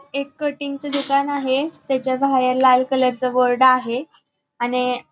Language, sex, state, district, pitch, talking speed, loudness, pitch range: Marathi, female, Maharashtra, Pune, 260 Hz, 165 wpm, -19 LUFS, 250-280 Hz